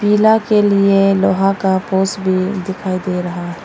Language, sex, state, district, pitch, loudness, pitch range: Hindi, female, Arunachal Pradesh, Longding, 195 Hz, -15 LUFS, 185-200 Hz